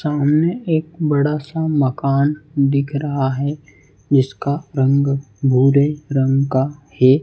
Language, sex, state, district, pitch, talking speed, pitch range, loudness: Hindi, male, Chhattisgarh, Raipur, 140 Hz, 115 wpm, 135-150 Hz, -18 LUFS